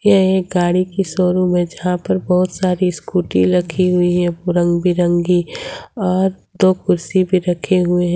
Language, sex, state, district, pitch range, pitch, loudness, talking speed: Hindi, female, Jharkhand, Ranchi, 175-185 Hz, 180 Hz, -16 LUFS, 170 wpm